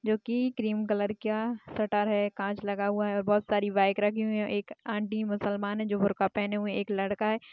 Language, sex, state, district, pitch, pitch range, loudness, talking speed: Hindi, female, Chhattisgarh, Bastar, 210 Hz, 205-215 Hz, -30 LUFS, 240 wpm